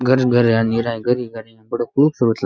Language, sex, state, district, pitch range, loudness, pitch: Rajasthani, male, Rajasthan, Nagaur, 115-125 Hz, -18 LUFS, 120 Hz